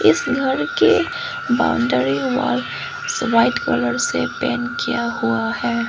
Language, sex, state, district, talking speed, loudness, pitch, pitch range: Hindi, female, Arunachal Pradesh, Lower Dibang Valley, 120 wpm, -19 LUFS, 240 Hz, 235-280 Hz